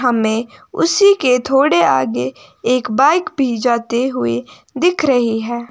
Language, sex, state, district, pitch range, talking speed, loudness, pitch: Hindi, female, Himachal Pradesh, Shimla, 225-275 Hz, 135 wpm, -15 LUFS, 245 Hz